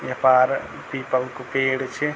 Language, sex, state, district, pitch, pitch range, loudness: Garhwali, male, Uttarakhand, Tehri Garhwal, 130 Hz, 130-135 Hz, -22 LUFS